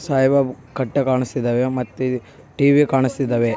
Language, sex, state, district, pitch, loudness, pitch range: Kannada, male, Karnataka, Bellary, 130 Hz, -19 LUFS, 125-140 Hz